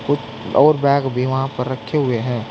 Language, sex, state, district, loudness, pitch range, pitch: Hindi, male, Uttar Pradesh, Saharanpur, -18 LUFS, 125-140 Hz, 130 Hz